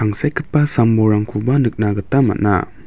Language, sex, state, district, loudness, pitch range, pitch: Garo, male, Meghalaya, West Garo Hills, -16 LUFS, 105-140 Hz, 110 Hz